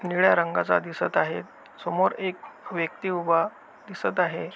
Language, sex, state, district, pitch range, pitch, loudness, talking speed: Marathi, male, Maharashtra, Aurangabad, 165-185 Hz, 175 Hz, -25 LUFS, 130 wpm